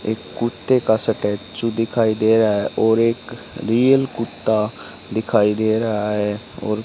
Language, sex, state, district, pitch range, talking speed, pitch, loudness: Hindi, male, Haryana, Charkhi Dadri, 105-115 Hz, 155 wpm, 110 Hz, -19 LUFS